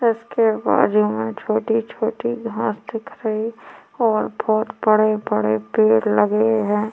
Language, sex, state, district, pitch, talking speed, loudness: Hindi, female, Chhattisgarh, Korba, 215 Hz, 130 wpm, -20 LUFS